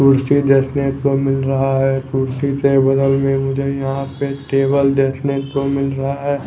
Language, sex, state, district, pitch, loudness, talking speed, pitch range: Hindi, male, Chhattisgarh, Raipur, 135 Hz, -17 LUFS, 175 wpm, 135-140 Hz